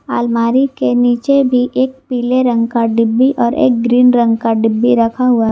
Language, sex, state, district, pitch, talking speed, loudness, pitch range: Hindi, female, Jharkhand, Garhwa, 240 Hz, 195 wpm, -13 LUFS, 230-255 Hz